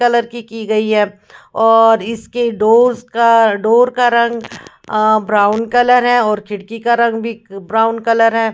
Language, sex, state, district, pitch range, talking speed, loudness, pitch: Hindi, female, Bihar, West Champaran, 215-235 Hz, 170 wpm, -13 LUFS, 225 Hz